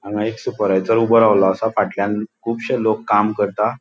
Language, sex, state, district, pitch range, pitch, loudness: Konkani, male, Goa, North and South Goa, 105-115 Hz, 105 Hz, -18 LUFS